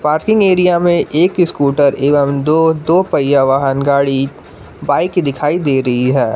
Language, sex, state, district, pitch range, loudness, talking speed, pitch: Hindi, male, Jharkhand, Garhwa, 140-170 Hz, -13 LUFS, 150 wpm, 145 Hz